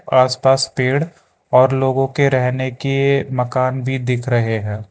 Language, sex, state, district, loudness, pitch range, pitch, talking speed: Hindi, male, Karnataka, Bangalore, -17 LUFS, 125-135 Hz, 130 Hz, 145 wpm